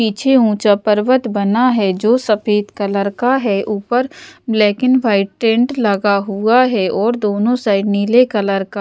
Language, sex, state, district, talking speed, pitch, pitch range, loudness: Hindi, female, Bihar, West Champaran, 165 wpm, 215 Hz, 200-245 Hz, -15 LUFS